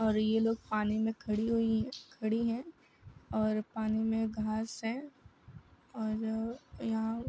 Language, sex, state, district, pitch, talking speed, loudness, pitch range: Hindi, female, Bihar, Gopalganj, 225 Hz, 140 wpm, -34 LUFS, 220-230 Hz